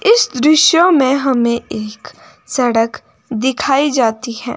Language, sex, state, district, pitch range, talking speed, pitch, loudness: Hindi, female, Himachal Pradesh, Shimla, 235-295 Hz, 120 wpm, 260 Hz, -14 LUFS